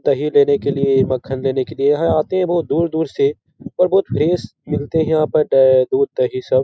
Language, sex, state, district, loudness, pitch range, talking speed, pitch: Hindi, male, Bihar, Jahanabad, -17 LUFS, 135-160 Hz, 235 wpm, 145 Hz